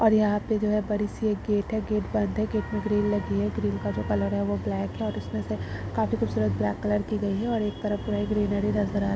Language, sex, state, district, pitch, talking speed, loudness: Hindi, female, Bihar, Saharsa, 205 Hz, 290 wpm, -27 LUFS